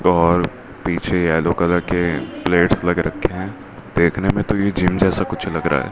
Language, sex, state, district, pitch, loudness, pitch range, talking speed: Hindi, male, Rajasthan, Bikaner, 90 Hz, -19 LUFS, 85-95 Hz, 195 wpm